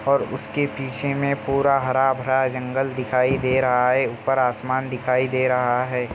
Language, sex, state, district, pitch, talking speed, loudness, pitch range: Hindi, male, Bihar, Jamui, 130 Hz, 175 wpm, -21 LUFS, 125-135 Hz